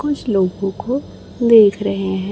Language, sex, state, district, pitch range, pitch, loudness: Hindi, female, Chhattisgarh, Raipur, 195-235 Hz, 205 Hz, -16 LUFS